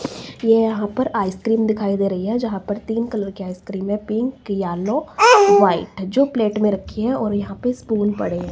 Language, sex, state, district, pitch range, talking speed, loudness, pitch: Hindi, female, Himachal Pradesh, Shimla, 195-230 Hz, 205 wpm, -19 LUFS, 210 Hz